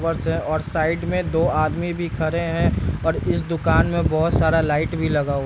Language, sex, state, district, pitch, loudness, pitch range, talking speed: Hindi, male, Bihar, East Champaran, 160 Hz, -21 LUFS, 150-165 Hz, 210 wpm